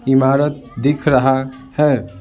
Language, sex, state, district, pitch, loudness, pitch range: Hindi, male, Bihar, Patna, 135 Hz, -16 LUFS, 130-140 Hz